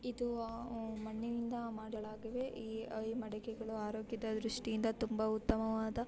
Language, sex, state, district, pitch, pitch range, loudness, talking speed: Kannada, female, Karnataka, Bijapur, 225 Hz, 220-230 Hz, -40 LUFS, 140 wpm